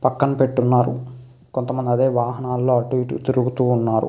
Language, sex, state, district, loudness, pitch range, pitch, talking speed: Telugu, male, Andhra Pradesh, Krishna, -20 LUFS, 125-130 Hz, 125 Hz, 145 wpm